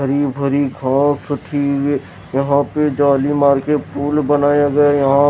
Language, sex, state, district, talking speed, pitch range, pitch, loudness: Hindi, male, Bihar, West Champaran, 160 wpm, 140-145 Hz, 145 Hz, -16 LUFS